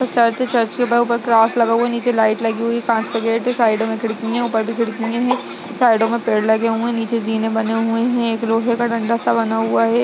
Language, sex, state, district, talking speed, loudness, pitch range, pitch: Hindi, female, Uttar Pradesh, Budaun, 270 wpm, -18 LUFS, 225-235 Hz, 230 Hz